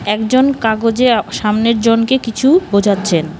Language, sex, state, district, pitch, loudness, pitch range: Bengali, female, West Bengal, Cooch Behar, 225 Hz, -13 LUFS, 205-250 Hz